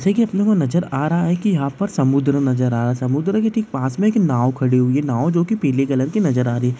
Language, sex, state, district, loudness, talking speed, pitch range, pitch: Hindi, male, Bihar, Darbhanga, -18 LUFS, 315 wpm, 130-195 Hz, 140 Hz